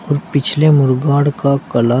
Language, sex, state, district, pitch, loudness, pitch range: Hindi, male, Uttar Pradesh, Shamli, 140 Hz, -14 LUFS, 130-145 Hz